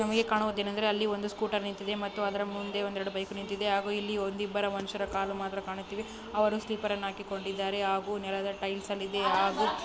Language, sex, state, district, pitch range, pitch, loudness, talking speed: Kannada, female, Karnataka, Raichur, 195-210 Hz, 200 Hz, -32 LUFS, 190 wpm